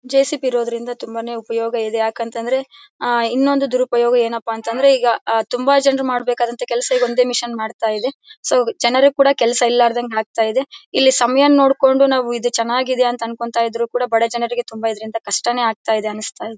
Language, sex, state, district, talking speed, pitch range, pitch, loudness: Kannada, female, Karnataka, Bellary, 145 wpm, 230-260 Hz, 240 Hz, -17 LUFS